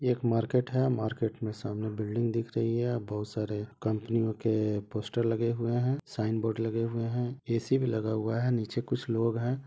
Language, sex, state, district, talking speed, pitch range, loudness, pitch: Hindi, male, Chhattisgarh, Rajnandgaon, 190 wpm, 110-120 Hz, -31 LUFS, 115 Hz